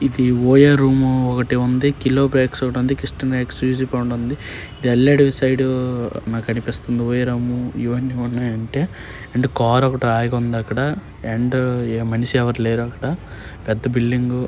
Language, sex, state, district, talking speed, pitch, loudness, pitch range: Telugu, male, Andhra Pradesh, Srikakulam, 130 wpm, 125 Hz, -19 LUFS, 120-130 Hz